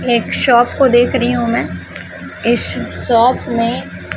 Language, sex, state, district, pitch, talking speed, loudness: Hindi, female, Chhattisgarh, Raipur, 235 Hz, 145 wpm, -14 LUFS